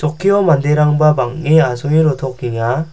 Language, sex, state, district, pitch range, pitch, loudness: Garo, male, Meghalaya, South Garo Hills, 135-160 Hz, 150 Hz, -14 LUFS